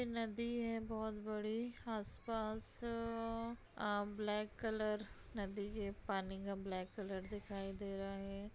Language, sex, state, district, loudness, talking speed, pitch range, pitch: Hindi, female, Bihar, Begusarai, -43 LUFS, 125 wpm, 200-225 Hz, 210 Hz